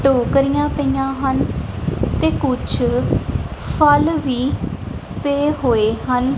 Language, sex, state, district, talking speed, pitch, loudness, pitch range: Punjabi, female, Punjab, Kapurthala, 95 wpm, 270 Hz, -18 LUFS, 260-290 Hz